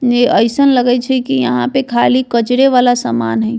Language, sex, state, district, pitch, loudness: Bajjika, female, Bihar, Vaishali, 245 Hz, -12 LUFS